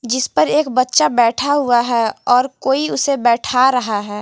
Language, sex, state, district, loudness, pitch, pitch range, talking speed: Hindi, female, Jharkhand, Garhwa, -15 LUFS, 250 Hz, 235-270 Hz, 185 wpm